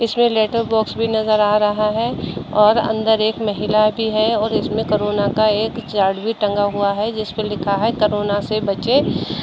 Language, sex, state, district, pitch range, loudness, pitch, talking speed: Hindi, female, Uttar Pradesh, Budaun, 210-220 Hz, -18 LUFS, 215 Hz, 195 wpm